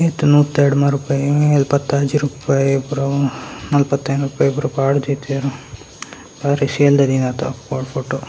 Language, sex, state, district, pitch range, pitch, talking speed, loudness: Tulu, male, Karnataka, Dakshina Kannada, 135-145 Hz, 140 Hz, 70 wpm, -17 LUFS